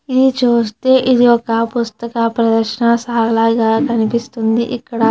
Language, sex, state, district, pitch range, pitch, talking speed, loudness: Telugu, female, Andhra Pradesh, Chittoor, 225-245 Hz, 235 Hz, 115 wpm, -14 LUFS